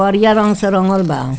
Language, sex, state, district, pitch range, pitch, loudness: Bhojpuri, female, Bihar, Muzaffarpur, 185-210 Hz, 195 Hz, -14 LUFS